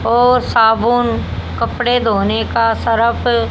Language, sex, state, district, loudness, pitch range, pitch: Hindi, female, Haryana, Jhajjar, -14 LUFS, 225-245 Hz, 230 Hz